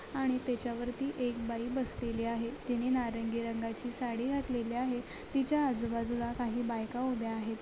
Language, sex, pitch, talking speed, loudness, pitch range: Marathi, female, 240 Hz, 150 wpm, -35 LUFS, 230-255 Hz